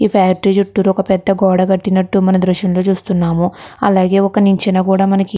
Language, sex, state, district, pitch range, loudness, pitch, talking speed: Telugu, female, Andhra Pradesh, Chittoor, 185-195 Hz, -14 LUFS, 190 Hz, 180 wpm